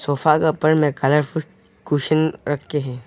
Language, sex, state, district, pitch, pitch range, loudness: Hindi, male, Arunachal Pradesh, Longding, 150 Hz, 145-155 Hz, -19 LUFS